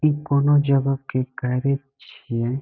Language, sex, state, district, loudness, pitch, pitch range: Maithili, male, Bihar, Saharsa, -22 LUFS, 135 Hz, 130-140 Hz